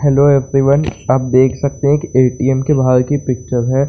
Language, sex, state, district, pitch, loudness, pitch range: Hindi, male, Bihar, Saran, 135 Hz, -14 LUFS, 130-140 Hz